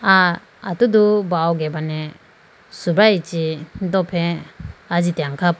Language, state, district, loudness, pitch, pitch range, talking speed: Idu Mishmi, Arunachal Pradesh, Lower Dibang Valley, -19 LUFS, 175 Hz, 165-195 Hz, 95 wpm